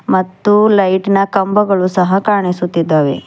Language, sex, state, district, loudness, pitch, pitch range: Kannada, female, Karnataka, Bidar, -13 LUFS, 190 Hz, 180-200 Hz